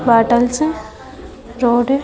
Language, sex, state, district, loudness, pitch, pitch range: Hindi, female, Bihar, Vaishali, -15 LUFS, 240 Hz, 240-270 Hz